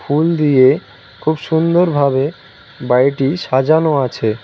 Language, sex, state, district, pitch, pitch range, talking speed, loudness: Bengali, male, West Bengal, Cooch Behar, 140 Hz, 130-160 Hz, 110 wpm, -15 LUFS